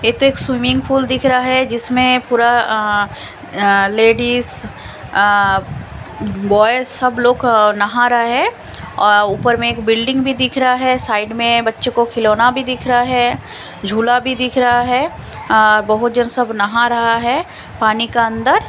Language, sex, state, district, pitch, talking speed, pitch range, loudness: Hindi, female, Punjab, Kapurthala, 235 Hz, 145 wpm, 215-250 Hz, -14 LUFS